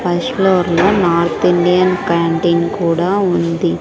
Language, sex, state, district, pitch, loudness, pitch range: Telugu, female, Andhra Pradesh, Sri Satya Sai, 175 Hz, -14 LUFS, 170-185 Hz